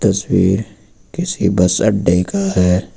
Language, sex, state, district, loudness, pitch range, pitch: Hindi, male, Uttar Pradesh, Lucknow, -15 LUFS, 90-105 Hz, 100 Hz